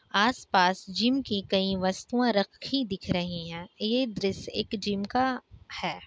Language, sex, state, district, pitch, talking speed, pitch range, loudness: Hindi, female, Bihar, Kishanganj, 200 Hz, 150 wpm, 190-245 Hz, -28 LUFS